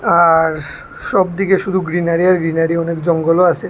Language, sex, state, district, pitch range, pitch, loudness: Bengali, male, Tripura, West Tripura, 165-185 Hz, 170 Hz, -15 LUFS